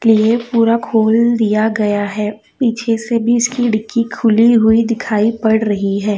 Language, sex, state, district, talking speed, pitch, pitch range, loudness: Hindi, female, Chhattisgarh, Raipur, 155 wpm, 225 Hz, 215-235 Hz, -14 LUFS